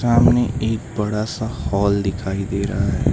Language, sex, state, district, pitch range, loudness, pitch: Hindi, male, Uttar Pradesh, Lucknow, 100-115 Hz, -20 LUFS, 105 Hz